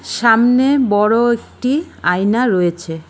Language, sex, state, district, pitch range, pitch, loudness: Bengali, female, West Bengal, Cooch Behar, 185-250 Hz, 230 Hz, -15 LUFS